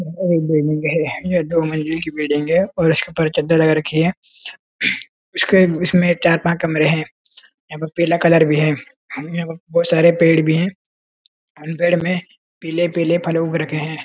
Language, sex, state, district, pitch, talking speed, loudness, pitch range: Hindi, male, Uttarakhand, Uttarkashi, 165 Hz, 185 wpm, -17 LUFS, 155-170 Hz